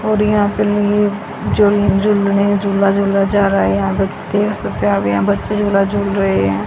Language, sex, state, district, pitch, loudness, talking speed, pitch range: Hindi, female, Haryana, Charkhi Dadri, 200 Hz, -15 LUFS, 200 wpm, 190-205 Hz